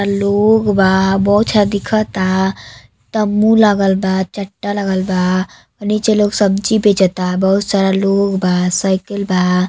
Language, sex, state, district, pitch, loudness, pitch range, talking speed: Bhojpuri, female, Uttar Pradesh, Gorakhpur, 195 Hz, -14 LUFS, 190-205 Hz, 130 wpm